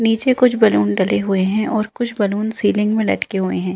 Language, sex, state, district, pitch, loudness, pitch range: Hindi, female, Uttarakhand, Uttarkashi, 210 Hz, -17 LUFS, 190-225 Hz